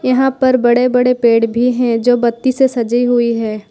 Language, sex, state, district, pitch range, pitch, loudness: Hindi, female, Jharkhand, Ranchi, 235-250 Hz, 245 Hz, -13 LUFS